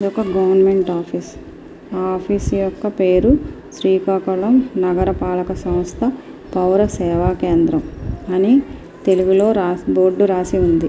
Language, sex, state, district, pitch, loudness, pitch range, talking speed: Telugu, female, Andhra Pradesh, Srikakulam, 190 Hz, -17 LUFS, 180-200 Hz, 110 wpm